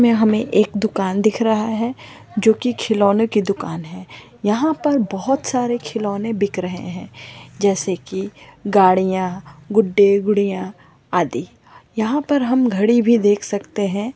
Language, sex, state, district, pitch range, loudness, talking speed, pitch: Marwari, female, Rajasthan, Churu, 195-230 Hz, -18 LUFS, 150 wpm, 210 Hz